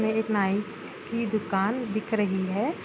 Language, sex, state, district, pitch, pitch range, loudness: Hindi, female, Bihar, Bhagalpur, 215 Hz, 200-220 Hz, -27 LUFS